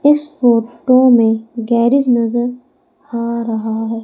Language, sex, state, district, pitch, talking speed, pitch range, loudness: Hindi, female, Madhya Pradesh, Umaria, 235 Hz, 120 wpm, 230-260 Hz, -14 LUFS